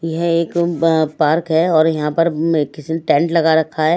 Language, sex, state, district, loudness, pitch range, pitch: Hindi, female, Odisha, Malkangiri, -16 LUFS, 155-165 Hz, 160 Hz